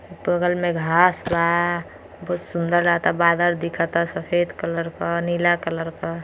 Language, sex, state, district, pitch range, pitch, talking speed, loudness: Bhojpuri, female, Uttar Pradesh, Gorakhpur, 170-175 Hz, 170 Hz, 145 wpm, -21 LUFS